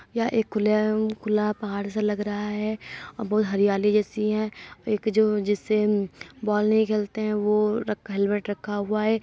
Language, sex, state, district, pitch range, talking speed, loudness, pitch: Hindi, female, Uttar Pradesh, Jyotiba Phule Nagar, 205-215 Hz, 160 wpm, -25 LUFS, 210 Hz